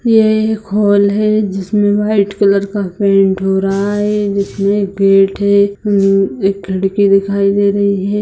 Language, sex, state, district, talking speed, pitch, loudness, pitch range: Hindi, female, Bihar, Saharsa, 155 wpm, 200 Hz, -13 LUFS, 195-205 Hz